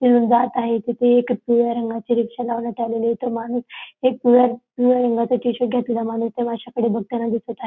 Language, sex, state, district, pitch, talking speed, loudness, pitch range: Marathi, female, Maharashtra, Dhule, 240 Hz, 205 wpm, -20 LUFS, 230-245 Hz